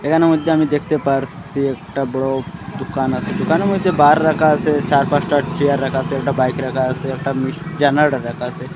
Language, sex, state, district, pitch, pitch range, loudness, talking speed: Bengali, male, Assam, Hailakandi, 145 Hz, 135-160 Hz, -17 LUFS, 190 wpm